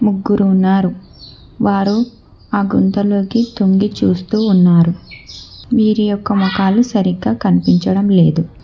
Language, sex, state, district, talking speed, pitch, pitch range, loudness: Telugu, female, Telangana, Hyderabad, 95 wpm, 195 Hz, 185-210 Hz, -14 LUFS